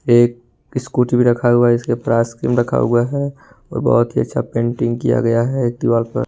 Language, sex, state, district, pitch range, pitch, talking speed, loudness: Hindi, male, Jharkhand, Ranchi, 120-125 Hz, 120 Hz, 190 wpm, -17 LUFS